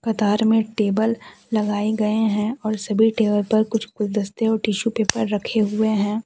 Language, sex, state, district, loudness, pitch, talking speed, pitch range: Hindi, female, Jharkhand, Deoghar, -21 LUFS, 215 Hz, 170 wpm, 210-220 Hz